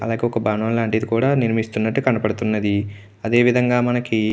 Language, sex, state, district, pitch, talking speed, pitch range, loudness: Telugu, male, Andhra Pradesh, Chittoor, 115 Hz, 150 wpm, 110-120 Hz, -19 LUFS